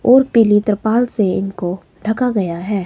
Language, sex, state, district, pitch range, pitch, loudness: Hindi, female, Himachal Pradesh, Shimla, 190-230 Hz, 210 Hz, -16 LUFS